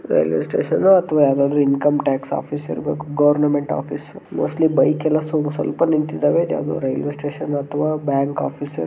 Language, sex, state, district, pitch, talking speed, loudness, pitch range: Kannada, male, Karnataka, Gulbarga, 145 Hz, 155 wpm, -19 LUFS, 145-155 Hz